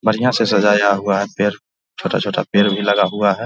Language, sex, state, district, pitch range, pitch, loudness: Hindi, male, Bihar, Vaishali, 100-105 Hz, 100 Hz, -17 LUFS